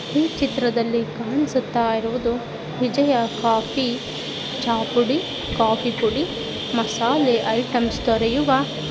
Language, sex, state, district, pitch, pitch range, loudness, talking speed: Kannada, female, Karnataka, Dakshina Kannada, 240 Hz, 230-260 Hz, -21 LUFS, 80 wpm